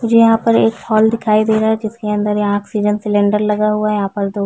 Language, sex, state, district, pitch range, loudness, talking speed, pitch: Hindi, female, Chhattisgarh, Rajnandgaon, 205-220 Hz, -15 LUFS, 270 wpm, 210 Hz